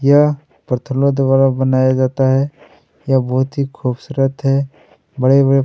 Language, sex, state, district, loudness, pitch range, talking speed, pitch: Hindi, male, Chhattisgarh, Kabirdham, -16 LUFS, 130-140 Hz, 130 wpm, 135 Hz